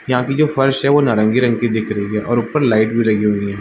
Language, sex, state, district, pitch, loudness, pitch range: Hindi, male, Chhattisgarh, Balrampur, 120 Hz, -16 LUFS, 110-135 Hz